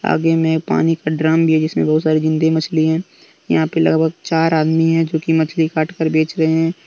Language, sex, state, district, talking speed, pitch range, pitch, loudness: Hindi, male, Jharkhand, Deoghar, 235 wpm, 155-165 Hz, 160 Hz, -16 LUFS